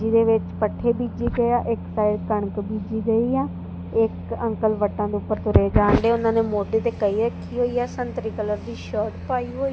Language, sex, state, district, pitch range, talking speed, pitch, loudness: Punjabi, female, Punjab, Kapurthala, 205-235 Hz, 210 wpm, 220 Hz, -23 LUFS